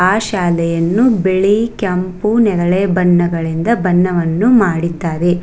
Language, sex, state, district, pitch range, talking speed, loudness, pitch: Kannada, female, Karnataka, Bangalore, 170-205 Hz, 90 wpm, -14 LUFS, 180 Hz